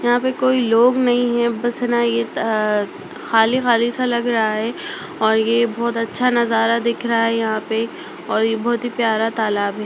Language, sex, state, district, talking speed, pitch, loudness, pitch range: Bhojpuri, female, Bihar, Saran, 170 wpm, 230 Hz, -18 LUFS, 225-240 Hz